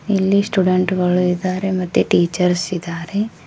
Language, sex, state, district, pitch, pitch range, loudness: Kannada, male, Karnataka, Koppal, 185 Hz, 180-190 Hz, -18 LUFS